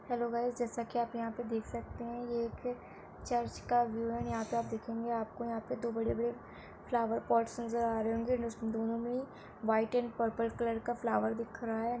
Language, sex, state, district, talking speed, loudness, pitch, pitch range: Hindi, female, Uttar Pradesh, Etah, 215 wpm, -36 LUFS, 235 Hz, 230-240 Hz